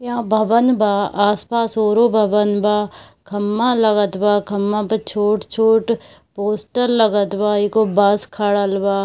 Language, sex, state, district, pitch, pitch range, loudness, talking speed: Hindi, female, Bihar, Darbhanga, 210 Hz, 205-225 Hz, -17 LUFS, 130 wpm